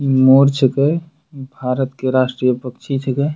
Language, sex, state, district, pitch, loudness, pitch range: Angika, male, Bihar, Bhagalpur, 135 Hz, -16 LUFS, 130-140 Hz